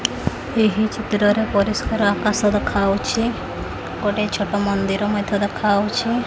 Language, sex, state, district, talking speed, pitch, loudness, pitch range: Odia, female, Odisha, Khordha, 95 wpm, 210 Hz, -20 LUFS, 205-215 Hz